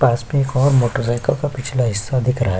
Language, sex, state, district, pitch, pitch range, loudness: Hindi, male, Chhattisgarh, Korba, 125 Hz, 120-130 Hz, -18 LUFS